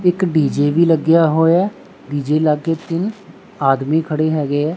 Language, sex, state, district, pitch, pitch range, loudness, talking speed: Punjabi, male, Punjab, Pathankot, 160 Hz, 150-170 Hz, -16 LUFS, 150 wpm